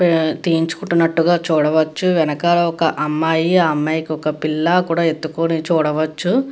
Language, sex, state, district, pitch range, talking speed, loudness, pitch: Telugu, female, Andhra Pradesh, Guntur, 155-170 Hz, 130 wpm, -17 LUFS, 165 Hz